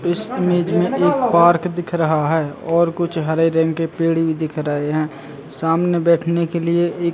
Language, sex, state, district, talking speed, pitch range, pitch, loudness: Hindi, male, Chhattisgarh, Bastar, 200 wpm, 160-170 Hz, 165 Hz, -18 LUFS